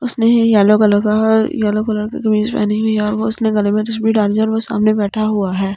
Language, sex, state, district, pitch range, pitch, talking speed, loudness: Hindi, female, Delhi, New Delhi, 210-220 Hz, 215 Hz, 260 wpm, -15 LUFS